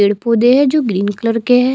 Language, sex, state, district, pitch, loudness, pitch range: Hindi, female, Chhattisgarh, Jashpur, 235 Hz, -13 LUFS, 210-250 Hz